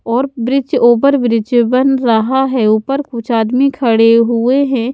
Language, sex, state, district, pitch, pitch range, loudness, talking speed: Hindi, female, Haryana, Charkhi Dadri, 245 Hz, 230-270 Hz, -12 LUFS, 160 wpm